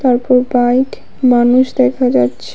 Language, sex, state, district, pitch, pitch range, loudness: Bengali, female, Tripura, West Tripura, 250 Hz, 245-255 Hz, -13 LUFS